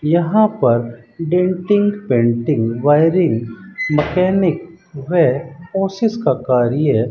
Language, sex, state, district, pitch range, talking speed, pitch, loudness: Hindi, male, Rajasthan, Bikaner, 125-185 Hz, 95 wpm, 165 Hz, -16 LUFS